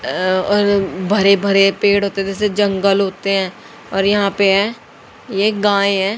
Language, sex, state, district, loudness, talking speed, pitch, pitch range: Hindi, female, Haryana, Jhajjar, -16 LUFS, 175 wpm, 200 Hz, 195-205 Hz